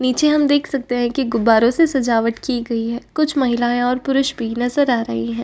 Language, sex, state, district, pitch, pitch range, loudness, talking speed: Hindi, female, Uttar Pradesh, Varanasi, 245 Hz, 230-275 Hz, -18 LUFS, 220 wpm